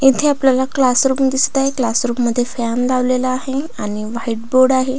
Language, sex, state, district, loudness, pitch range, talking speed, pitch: Marathi, female, Maharashtra, Pune, -16 LUFS, 240-265 Hz, 170 wpm, 255 Hz